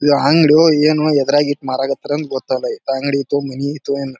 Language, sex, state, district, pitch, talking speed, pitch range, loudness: Kannada, male, Karnataka, Bijapur, 140 Hz, 200 wpm, 135-150 Hz, -16 LUFS